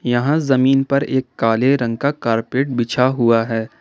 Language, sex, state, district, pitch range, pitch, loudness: Hindi, male, Jharkhand, Ranchi, 115-135 Hz, 125 Hz, -17 LUFS